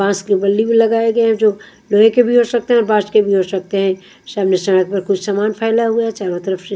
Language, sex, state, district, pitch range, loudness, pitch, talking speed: Hindi, female, Punjab, Kapurthala, 195-225 Hz, -15 LUFS, 205 Hz, 275 wpm